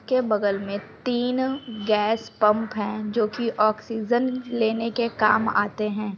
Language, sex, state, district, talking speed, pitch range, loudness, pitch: Hindi, female, Chhattisgarh, Sukma, 155 wpm, 210-240 Hz, -24 LUFS, 220 Hz